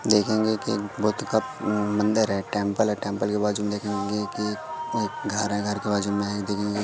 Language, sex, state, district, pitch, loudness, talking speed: Hindi, male, Madhya Pradesh, Katni, 105 Hz, -26 LUFS, 200 wpm